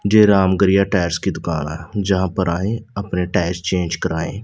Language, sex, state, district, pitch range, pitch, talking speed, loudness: Hindi, male, Punjab, Pathankot, 85-100 Hz, 95 Hz, 175 wpm, -18 LUFS